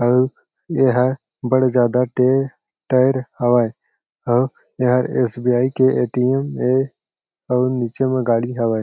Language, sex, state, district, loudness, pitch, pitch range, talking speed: Chhattisgarhi, male, Chhattisgarh, Jashpur, -18 LUFS, 125 Hz, 120-130 Hz, 135 wpm